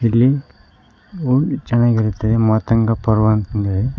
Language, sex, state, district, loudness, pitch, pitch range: Kannada, male, Karnataka, Koppal, -17 LUFS, 115 Hz, 110-120 Hz